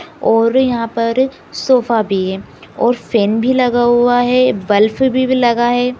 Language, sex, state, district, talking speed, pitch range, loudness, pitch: Hindi, female, Bihar, Kishanganj, 160 wpm, 225-255 Hz, -14 LUFS, 240 Hz